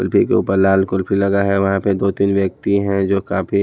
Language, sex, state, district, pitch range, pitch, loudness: Hindi, male, Himachal Pradesh, Shimla, 95-100 Hz, 100 Hz, -17 LUFS